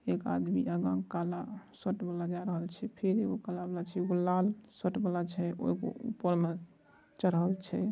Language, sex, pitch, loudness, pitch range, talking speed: Angika, male, 180 Hz, -34 LUFS, 170-190 Hz, 210 wpm